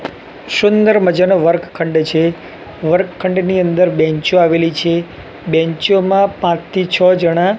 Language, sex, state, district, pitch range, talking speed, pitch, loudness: Gujarati, male, Gujarat, Gandhinagar, 165-185 Hz, 120 wpm, 175 Hz, -14 LUFS